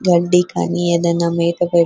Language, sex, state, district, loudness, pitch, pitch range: Telugu, female, Telangana, Nalgonda, -16 LUFS, 170 Hz, 170-175 Hz